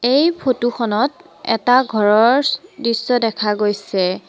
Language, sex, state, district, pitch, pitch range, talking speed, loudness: Assamese, female, Assam, Sonitpur, 235 Hz, 210-270 Hz, 110 wpm, -17 LUFS